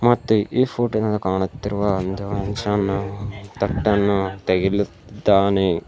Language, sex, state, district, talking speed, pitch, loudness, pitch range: Kannada, male, Karnataka, Bidar, 70 wpm, 100 Hz, -21 LUFS, 95-105 Hz